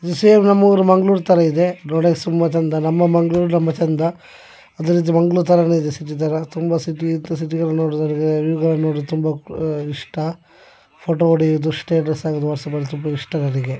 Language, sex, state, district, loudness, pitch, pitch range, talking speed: Kannada, male, Karnataka, Dakshina Kannada, -18 LUFS, 160 Hz, 155-170 Hz, 110 wpm